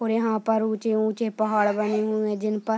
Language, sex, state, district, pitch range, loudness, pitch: Hindi, female, Bihar, Purnia, 215-220 Hz, -24 LUFS, 215 Hz